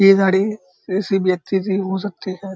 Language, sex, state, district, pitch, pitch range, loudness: Hindi, male, Uttar Pradesh, Muzaffarnagar, 195 Hz, 190-195 Hz, -19 LUFS